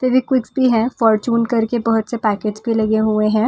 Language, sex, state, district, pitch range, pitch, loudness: Hindi, female, Delhi, New Delhi, 220-240 Hz, 230 Hz, -17 LUFS